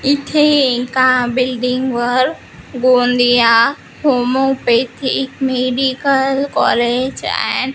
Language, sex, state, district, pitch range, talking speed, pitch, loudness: Marathi, female, Maharashtra, Gondia, 245-270 Hz, 75 wpm, 255 Hz, -14 LUFS